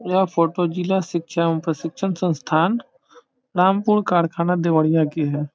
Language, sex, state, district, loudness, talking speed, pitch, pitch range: Hindi, male, Bihar, Saran, -20 LUFS, 130 wpm, 175 Hz, 160-190 Hz